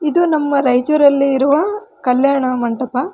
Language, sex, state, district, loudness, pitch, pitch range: Kannada, female, Karnataka, Raichur, -15 LUFS, 275 Hz, 255-305 Hz